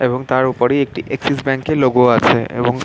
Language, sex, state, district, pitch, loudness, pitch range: Bengali, male, West Bengal, Dakshin Dinajpur, 130 Hz, -15 LUFS, 120-135 Hz